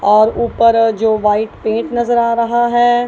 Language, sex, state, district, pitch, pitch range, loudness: Hindi, female, Punjab, Kapurthala, 230 Hz, 220-240 Hz, -14 LUFS